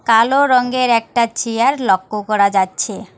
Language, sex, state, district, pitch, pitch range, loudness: Bengali, female, West Bengal, Alipurduar, 230 Hz, 200-245 Hz, -15 LUFS